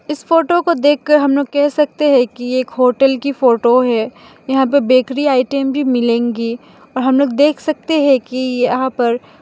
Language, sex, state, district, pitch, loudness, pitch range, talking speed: Hindi, female, Mizoram, Aizawl, 265 Hz, -14 LUFS, 250-290 Hz, 190 wpm